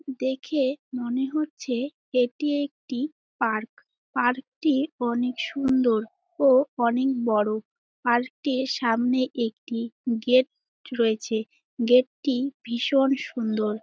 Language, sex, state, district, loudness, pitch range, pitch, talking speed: Bengali, female, West Bengal, Jalpaiguri, -25 LUFS, 235-275 Hz, 255 Hz, 105 wpm